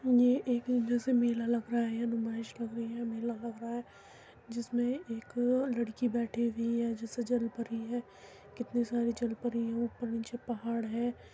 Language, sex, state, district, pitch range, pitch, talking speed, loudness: Hindi, female, Uttar Pradesh, Muzaffarnagar, 230-240 Hz, 235 Hz, 185 wpm, -34 LUFS